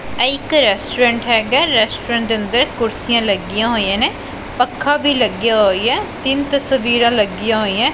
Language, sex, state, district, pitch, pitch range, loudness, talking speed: Punjabi, female, Punjab, Pathankot, 235 Hz, 220-265 Hz, -15 LUFS, 150 wpm